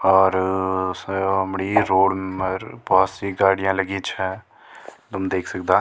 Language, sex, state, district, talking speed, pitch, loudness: Garhwali, male, Uttarakhand, Tehri Garhwal, 125 wpm, 95 Hz, -21 LUFS